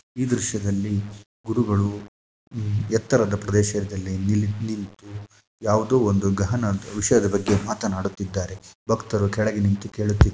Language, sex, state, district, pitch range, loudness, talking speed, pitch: Kannada, male, Karnataka, Shimoga, 100-110 Hz, -23 LUFS, 100 wpm, 105 Hz